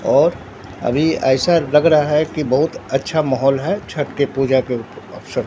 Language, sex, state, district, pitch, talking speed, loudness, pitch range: Hindi, male, Bihar, Katihar, 145 Hz, 175 wpm, -17 LUFS, 135-155 Hz